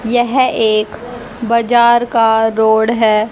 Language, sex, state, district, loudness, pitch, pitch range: Hindi, female, Haryana, Rohtak, -12 LUFS, 230 Hz, 220-240 Hz